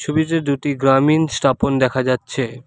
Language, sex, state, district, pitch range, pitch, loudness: Bengali, male, West Bengal, Alipurduar, 130-150 Hz, 135 Hz, -17 LUFS